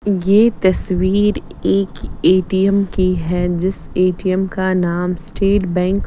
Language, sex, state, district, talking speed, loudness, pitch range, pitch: Hindi, female, Chandigarh, Chandigarh, 130 wpm, -17 LUFS, 180-195 Hz, 185 Hz